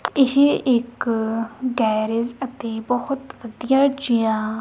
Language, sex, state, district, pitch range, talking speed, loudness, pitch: Punjabi, female, Punjab, Kapurthala, 225-265 Hz, 90 wpm, -21 LUFS, 240 Hz